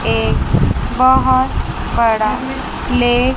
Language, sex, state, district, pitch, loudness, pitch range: Hindi, male, Chandigarh, Chandigarh, 255 Hz, -15 LUFS, 235-260 Hz